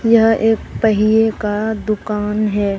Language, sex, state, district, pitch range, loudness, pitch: Hindi, female, Bihar, Katihar, 210-225 Hz, -16 LUFS, 215 Hz